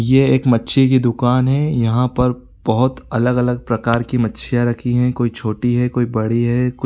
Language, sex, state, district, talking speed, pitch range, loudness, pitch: Sadri, male, Chhattisgarh, Jashpur, 210 wpm, 115-125 Hz, -17 LUFS, 125 Hz